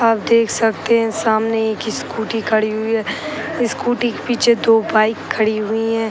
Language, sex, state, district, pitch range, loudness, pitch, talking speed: Hindi, female, Uttar Pradesh, Gorakhpur, 220-230 Hz, -17 LUFS, 225 Hz, 175 wpm